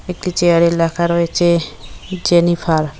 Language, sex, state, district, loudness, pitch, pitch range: Bengali, female, West Bengal, Cooch Behar, -15 LUFS, 170 Hz, 165-175 Hz